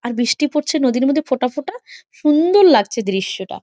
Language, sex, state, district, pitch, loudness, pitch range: Bengali, female, West Bengal, Malda, 295 Hz, -16 LUFS, 245-315 Hz